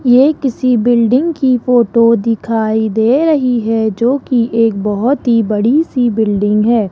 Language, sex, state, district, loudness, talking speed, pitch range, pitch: Hindi, male, Rajasthan, Jaipur, -13 LUFS, 155 wpm, 220-255 Hz, 235 Hz